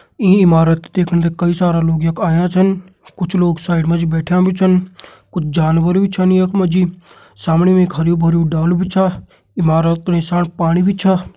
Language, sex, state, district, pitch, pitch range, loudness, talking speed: Kumaoni, male, Uttarakhand, Tehri Garhwal, 175 Hz, 165-185 Hz, -14 LUFS, 200 wpm